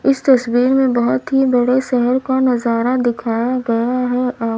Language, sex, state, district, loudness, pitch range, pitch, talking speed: Hindi, female, Uttar Pradesh, Lalitpur, -16 LUFS, 235-260 Hz, 250 Hz, 170 wpm